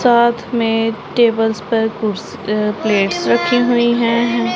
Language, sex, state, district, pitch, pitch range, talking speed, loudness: Hindi, female, Punjab, Pathankot, 225 Hz, 210-235 Hz, 120 wpm, -16 LUFS